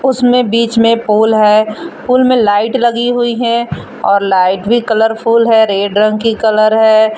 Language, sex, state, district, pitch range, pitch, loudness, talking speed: Hindi, female, Jharkhand, Palamu, 215-235 Hz, 225 Hz, -11 LUFS, 175 wpm